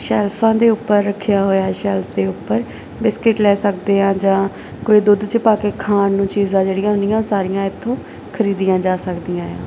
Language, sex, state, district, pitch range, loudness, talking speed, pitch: Punjabi, female, Punjab, Kapurthala, 190-210 Hz, -17 LUFS, 200 wpm, 200 Hz